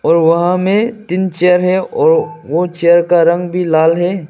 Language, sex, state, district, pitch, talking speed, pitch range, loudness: Hindi, male, Arunachal Pradesh, Lower Dibang Valley, 180 Hz, 195 wpm, 170-185 Hz, -13 LUFS